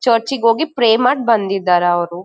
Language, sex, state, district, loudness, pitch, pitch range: Kannada, female, Karnataka, Gulbarga, -15 LUFS, 230 Hz, 180-245 Hz